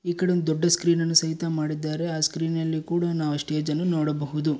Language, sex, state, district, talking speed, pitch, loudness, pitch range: Kannada, male, Karnataka, Bellary, 210 wpm, 160 Hz, -24 LUFS, 155-170 Hz